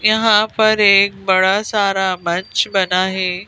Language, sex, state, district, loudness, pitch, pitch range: Hindi, female, Madhya Pradesh, Bhopal, -15 LUFS, 195 Hz, 185-210 Hz